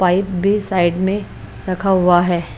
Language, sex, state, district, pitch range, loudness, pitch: Hindi, female, Bihar, West Champaran, 175-195 Hz, -17 LUFS, 185 Hz